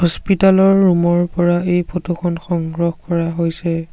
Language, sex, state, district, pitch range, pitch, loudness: Assamese, male, Assam, Sonitpur, 170-180 Hz, 175 Hz, -16 LUFS